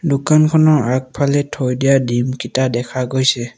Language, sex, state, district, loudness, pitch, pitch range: Assamese, male, Assam, Sonitpur, -16 LUFS, 130 Hz, 125-145 Hz